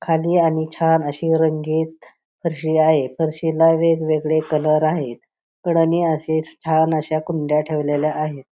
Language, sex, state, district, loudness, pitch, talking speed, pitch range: Marathi, female, Maharashtra, Pune, -19 LUFS, 160 Hz, 135 wpm, 155-165 Hz